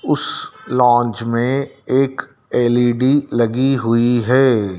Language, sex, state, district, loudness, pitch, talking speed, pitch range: Hindi, male, Madhya Pradesh, Dhar, -16 LUFS, 120 Hz, 100 wpm, 120-130 Hz